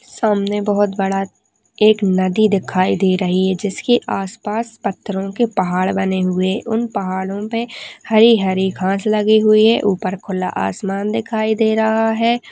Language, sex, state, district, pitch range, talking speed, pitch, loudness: Hindi, female, Chhattisgarh, Balrampur, 190-220 Hz, 155 wpm, 200 Hz, -17 LUFS